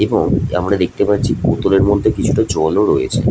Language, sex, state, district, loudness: Bengali, male, West Bengal, Jhargram, -15 LUFS